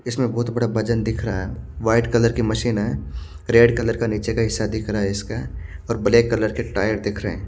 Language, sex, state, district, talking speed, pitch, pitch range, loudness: Hindi, male, Haryana, Charkhi Dadri, 240 wpm, 110 Hz, 100-115 Hz, -21 LUFS